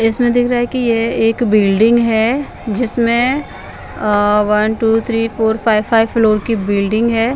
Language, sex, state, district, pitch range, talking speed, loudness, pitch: Hindi, female, Bihar, Patna, 220-235 Hz, 170 wpm, -14 LUFS, 225 Hz